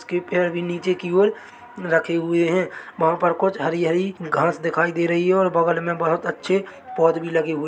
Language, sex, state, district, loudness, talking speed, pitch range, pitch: Hindi, male, Chhattisgarh, Bilaspur, -21 LUFS, 235 wpm, 165-185 Hz, 170 Hz